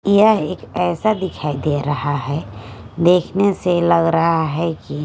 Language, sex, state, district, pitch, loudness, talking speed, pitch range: Hindi, female, Haryana, Charkhi Dadri, 165 Hz, -18 LUFS, 155 wpm, 145-180 Hz